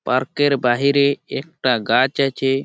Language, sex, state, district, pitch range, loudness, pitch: Bengali, male, West Bengal, Malda, 130-140 Hz, -18 LUFS, 135 Hz